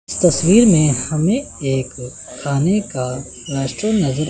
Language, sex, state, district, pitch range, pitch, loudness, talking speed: Hindi, male, Chandigarh, Chandigarh, 135-185 Hz, 155 Hz, -17 LUFS, 125 wpm